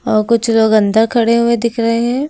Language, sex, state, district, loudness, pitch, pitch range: Hindi, female, Uttar Pradesh, Lucknow, -13 LUFS, 230 Hz, 220-235 Hz